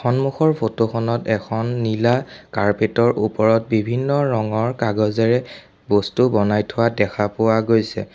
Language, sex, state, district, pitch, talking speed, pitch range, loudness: Assamese, male, Assam, Sonitpur, 115 Hz, 125 wpm, 110-120 Hz, -19 LUFS